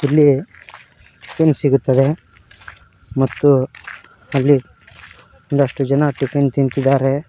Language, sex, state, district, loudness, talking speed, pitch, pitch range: Kannada, male, Karnataka, Koppal, -16 LUFS, 75 wpm, 135 Hz, 130-140 Hz